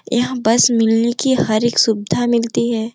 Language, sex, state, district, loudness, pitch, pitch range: Hindi, female, Uttar Pradesh, Gorakhpur, -16 LUFS, 235 Hz, 225-240 Hz